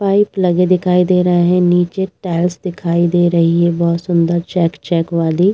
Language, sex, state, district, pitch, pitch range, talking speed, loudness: Hindi, female, Uttar Pradesh, Jalaun, 175 Hz, 170-180 Hz, 195 wpm, -14 LUFS